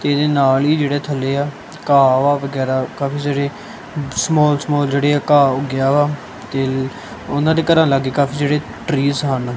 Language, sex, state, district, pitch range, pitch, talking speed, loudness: Punjabi, male, Punjab, Kapurthala, 135-145 Hz, 140 Hz, 170 wpm, -17 LUFS